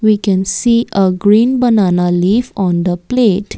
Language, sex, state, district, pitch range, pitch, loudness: English, female, Assam, Kamrup Metropolitan, 185-230 Hz, 200 Hz, -13 LUFS